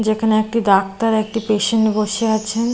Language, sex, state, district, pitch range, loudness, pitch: Bengali, female, West Bengal, Kolkata, 215-225 Hz, -17 LUFS, 220 Hz